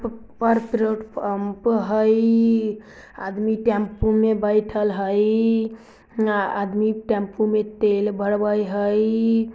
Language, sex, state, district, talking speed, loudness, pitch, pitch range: Maithili, female, Bihar, Samastipur, 95 wpm, -21 LUFS, 215 Hz, 210-225 Hz